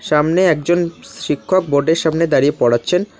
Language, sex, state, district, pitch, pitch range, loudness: Bengali, male, West Bengal, Alipurduar, 165 Hz, 150-180 Hz, -16 LUFS